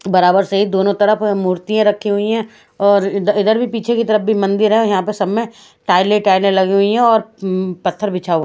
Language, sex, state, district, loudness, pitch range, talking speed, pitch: Hindi, female, Odisha, Khordha, -15 LUFS, 190-215 Hz, 240 wpm, 205 Hz